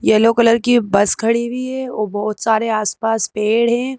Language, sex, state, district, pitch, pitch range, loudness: Hindi, female, Madhya Pradesh, Bhopal, 225 Hz, 215-235 Hz, -16 LUFS